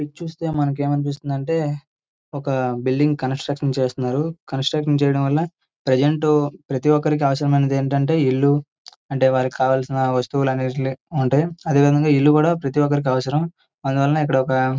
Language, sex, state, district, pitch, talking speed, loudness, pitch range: Telugu, male, Andhra Pradesh, Srikakulam, 140 Hz, 140 wpm, -20 LUFS, 135-150 Hz